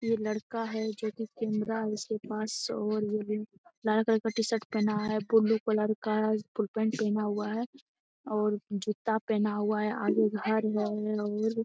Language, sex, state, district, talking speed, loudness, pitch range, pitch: Hindi, female, Bihar, Jamui, 170 wpm, -31 LUFS, 210-225 Hz, 215 Hz